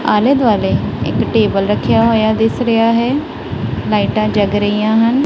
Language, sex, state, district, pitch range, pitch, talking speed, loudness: Punjabi, female, Punjab, Kapurthala, 210-230 Hz, 220 Hz, 150 wpm, -14 LUFS